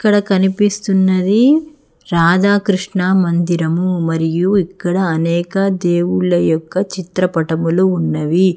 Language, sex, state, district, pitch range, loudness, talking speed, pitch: Telugu, female, Telangana, Hyderabad, 170-195 Hz, -15 LUFS, 75 wpm, 185 Hz